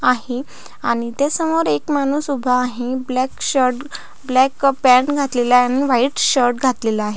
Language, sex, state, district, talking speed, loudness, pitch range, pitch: Marathi, female, Maharashtra, Pune, 160 wpm, -17 LUFS, 245-275 Hz, 255 Hz